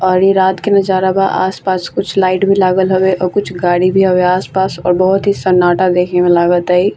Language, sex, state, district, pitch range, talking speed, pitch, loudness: Bhojpuri, female, Bihar, Gopalganj, 180-190 Hz, 225 wpm, 185 Hz, -12 LUFS